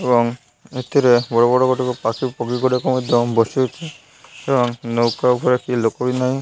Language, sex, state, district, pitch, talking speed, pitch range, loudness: Odia, male, Odisha, Malkangiri, 125 Hz, 170 wpm, 120-130 Hz, -18 LUFS